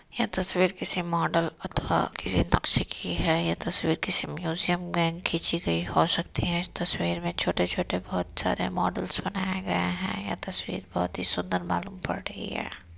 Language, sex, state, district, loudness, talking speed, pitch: Hindi, female, Uttar Pradesh, Varanasi, -27 LUFS, 195 wpm, 155 Hz